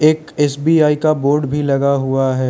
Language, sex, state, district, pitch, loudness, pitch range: Hindi, male, Arunachal Pradesh, Lower Dibang Valley, 145 Hz, -15 LUFS, 140-155 Hz